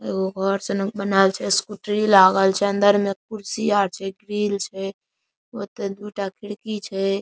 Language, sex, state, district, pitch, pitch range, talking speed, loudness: Maithili, male, Bihar, Saharsa, 200 Hz, 195-210 Hz, 175 wpm, -21 LUFS